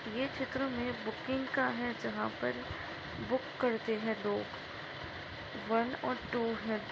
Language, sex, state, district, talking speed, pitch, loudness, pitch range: Hindi, female, Chhattisgarh, Bastar, 140 wpm, 240 Hz, -36 LUFS, 225-260 Hz